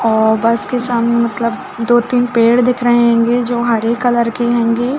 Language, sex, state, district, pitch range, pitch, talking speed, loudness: Hindi, female, Chhattisgarh, Bilaspur, 230-245 Hz, 235 Hz, 170 wpm, -14 LUFS